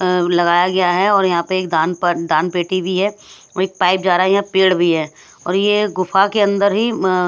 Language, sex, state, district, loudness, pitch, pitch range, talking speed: Hindi, female, Punjab, Pathankot, -16 LUFS, 185 Hz, 175-195 Hz, 215 wpm